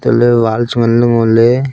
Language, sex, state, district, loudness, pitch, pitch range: Wancho, male, Arunachal Pradesh, Longding, -11 LUFS, 120 Hz, 115-120 Hz